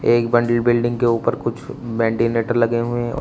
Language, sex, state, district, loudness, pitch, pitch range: Hindi, male, Uttar Pradesh, Shamli, -19 LUFS, 120 Hz, 115-120 Hz